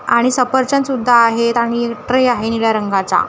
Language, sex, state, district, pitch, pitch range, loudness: Marathi, female, Maharashtra, Gondia, 235 Hz, 225-250 Hz, -15 LUFS